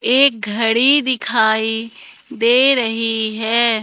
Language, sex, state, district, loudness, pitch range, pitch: Hindi, female, Madhya Pradesh, Katni, -15 LUFS, 225-250 Hz, 230 Hz